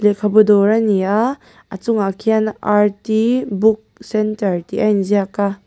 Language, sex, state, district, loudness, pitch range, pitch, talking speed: Mizo, female, Mizoram, Aizawl, -16 LUFS, 200-220 Hz, 210 Hz, 135 wpm